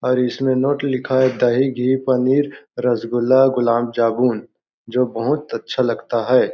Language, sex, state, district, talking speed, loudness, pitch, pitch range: Hindi, male, Chhattisgarh, Balrampur, 145 wpm, -18 LUFS, 125 Hz, 120-135 Hz